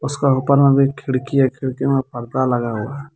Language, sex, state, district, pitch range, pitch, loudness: Hindi, male, Jharkhand, Deoghar, 130-140 Hz, 135 Hz, -18 LUFS